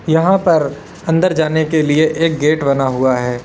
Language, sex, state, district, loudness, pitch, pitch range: Hindi, male, Uttar Pradesh, Lalitpur, -14 LUFS, 155 Hz, 140-165 Hz